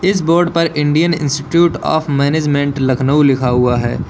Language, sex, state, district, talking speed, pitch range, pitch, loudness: Hindi, male, Uttar Pradesh, Lalitpur, 160 wpm, 140-165 Hz, 145 Hz, -14 LUFS